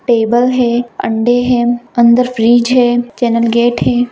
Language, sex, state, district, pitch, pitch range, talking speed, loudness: Hindi, female, Bihar, Gaya, 240 Hz, 235-245 Hz, 145 wpm, -12 LUFS